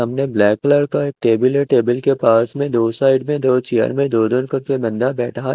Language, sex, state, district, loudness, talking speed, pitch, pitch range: Hindi, male, Chandigarh, Chandigarh, -17 LUFS, 240 wpm, 130 Hz, 115-140 Hz